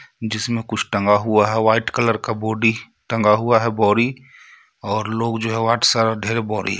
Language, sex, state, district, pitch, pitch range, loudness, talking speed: Hindi, male, Jharkhand, Ranchi, 110 Hz, 110-115 Hz, -19 LUFS, 160 wpm